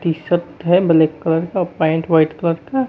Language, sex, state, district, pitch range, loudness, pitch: Hindi, male, Bihar, Kaimur, 160-175 Hz, -17 LUFS, 165 Hz